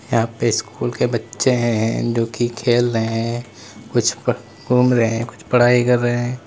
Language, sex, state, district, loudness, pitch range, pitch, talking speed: Hindi, male, Uttar Pradesh, Lalitpur, -19 LUFS, 115-125 Hz, 120 Hz, 185 wpm